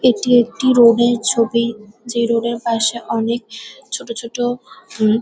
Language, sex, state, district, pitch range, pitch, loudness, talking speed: Bengali, female, West Bengal, Kolkata, 230-245 Hz, 235 Hz, -17 LUFS, 160 wpm